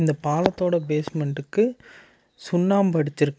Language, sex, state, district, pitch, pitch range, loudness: Tamil, male, Tamil Nadu, Namakkal, 160 Hz, 150-180 Hz, -23 LUFS